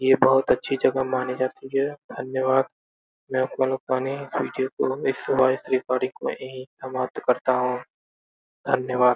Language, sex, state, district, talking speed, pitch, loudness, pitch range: Hindi, male, Uttar Pradesh, Gorakhpur, 125 wpm, 130 Hz, -24 LUFS, 125-130 Hz